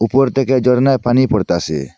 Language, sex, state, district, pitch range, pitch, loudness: Bengali, male, Assam, Hailakandi, 105-135 Hz, 125 Hz, -14 LUFS